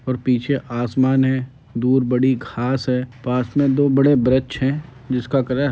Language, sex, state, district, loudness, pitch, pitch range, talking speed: Hindi, male, Uttar Pradesh, Deoria, -19 LUFS, 130 Hz, 125-135 Hz, 180 wpm